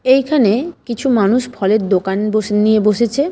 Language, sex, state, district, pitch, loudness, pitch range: Bengali, female, West Bengal, Malda, 220 Hz, -15 LUFS, 210-255 Hz